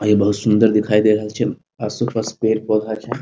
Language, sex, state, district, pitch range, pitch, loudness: Maithili, male, Bihar, Muzaffarpur, 105-110 Hz, 110 Hz, -18 LUFS